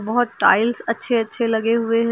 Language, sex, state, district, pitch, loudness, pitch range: Hindi, female, Uttar Pradesh, Lucknow, 230 Hz, -19 LUFS, 225-235 Hz